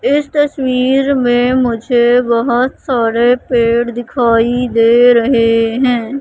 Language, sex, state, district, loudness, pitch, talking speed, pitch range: Hindi, female, Madhya Pradesh, Katni, -12 LUFS, 245 Hz, 105 wpm, 235-255 Hz